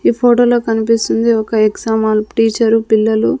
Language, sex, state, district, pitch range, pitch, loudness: Telugu, female, Andhra Pradesh, Sri Satya Sai, 220-230 Hz, 225 Hz, -13 LUFS